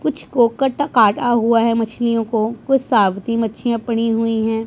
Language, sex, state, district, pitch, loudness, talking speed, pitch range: Hindi, male, Punjab, Pathankot, 230 Hz, -17 LUFS, 165 wpm, 225-240 Hz